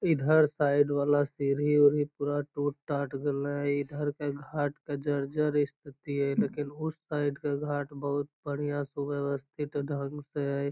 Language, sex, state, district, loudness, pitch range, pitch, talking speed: Magahi, male, Bihar, Lakhisarai, -30 LUFS, 140-145 Hz, 145 Hz, 160 wpm